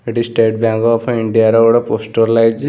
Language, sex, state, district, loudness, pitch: Odia, male, Odisha, Khordha, -13 LUFS, 115 Hz